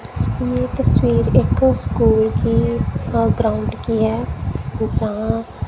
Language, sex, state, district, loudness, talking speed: Hindi, female, Punjab, Kapurthala, -18 LUFS, 105 wpm